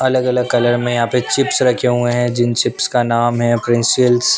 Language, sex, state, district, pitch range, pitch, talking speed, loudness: Hindi, male, Punjab, Pathankot, 120-125 Hz, 120 Hz, 235 wpm, -15 LUFS